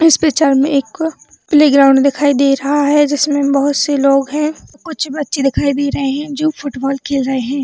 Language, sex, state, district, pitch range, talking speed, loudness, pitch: Hindi, female, Chhattisgarh, Bilaspur, 275-300 Hz, 195 wpm, -14 LUFS, 285 Hz